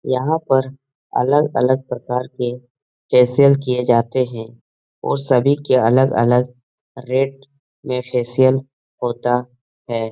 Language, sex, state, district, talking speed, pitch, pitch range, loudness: Hindi, male, Bihar, Jahanabad, 105 wpm, 125 Hz, 125-135 Hz, -18 LUFS